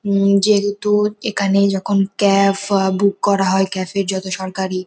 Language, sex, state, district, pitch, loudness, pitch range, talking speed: Bengali, female, West Bengal, North 24 Parganas, 195 Hz, -17 LUFS, 190-200 Hz, 160 wpm